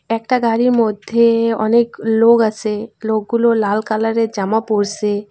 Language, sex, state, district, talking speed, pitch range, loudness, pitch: Bengali, female, West Bengal, Cooch Behar, 125 wpm, 215-230 Hz, -16 LUFS, 225 Hz